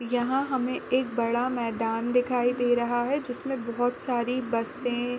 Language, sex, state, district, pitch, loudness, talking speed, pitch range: Hindi, female, Chhattisgarh, Korba, 245 Hz, -27 LUFS, 160 wpm, 240-255 Hz